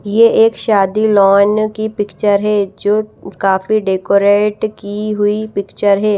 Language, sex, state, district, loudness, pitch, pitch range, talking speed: Hindi, female, Odisha, Malkangiri, -14 LUFS, 205 Hz, 200-215 Hz, 135 wpm